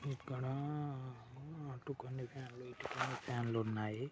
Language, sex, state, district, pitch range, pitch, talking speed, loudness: Telugu, male, Telangana, Nalgonda, 120-140 Hz, 130 Hz, 130 wpm, -43 LUFS